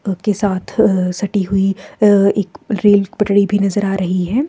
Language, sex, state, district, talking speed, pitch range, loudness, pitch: Hindi, female, Himachal Pradesh, Shimla, 175 wpm, 195-210 Hz, -15 LUFS, 200 Hz